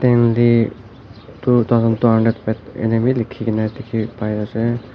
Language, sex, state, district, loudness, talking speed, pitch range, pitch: Nagamese, male, Nagaland, Dimapur, -18 LUFS, 135 wpm, 110-120 Hz, 115 Hz